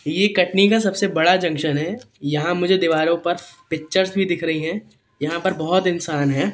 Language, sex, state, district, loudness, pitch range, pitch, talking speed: Hindi, male, Madhya Pradesh, Katni, -20 LUFS, 155-185 Hz, 170 Hz, 195 wpm